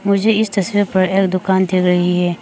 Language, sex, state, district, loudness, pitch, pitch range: Hindi, female, Arunachal Pradesh, Papum Pare, -15 LUFS, 190 Hz, 180-200 Hz